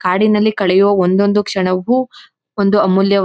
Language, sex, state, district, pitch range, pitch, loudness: Kannada, female, Karnataka, Mysore, 190-210 Hz, 200 Hz, -14 LUFS